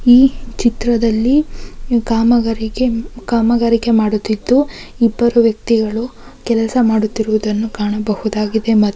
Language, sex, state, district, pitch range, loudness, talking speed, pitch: Kannada, female, Karnataka, Belgaum, 220-235 Hz, -15 LUFS, 65 wpm, 230 Hz